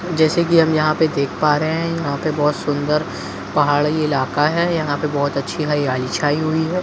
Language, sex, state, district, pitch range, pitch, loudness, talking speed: Hindi, male, Bihar, Jahanabad, 145-160 Hz, 150 Hz, -18 LUFS, 210 wpm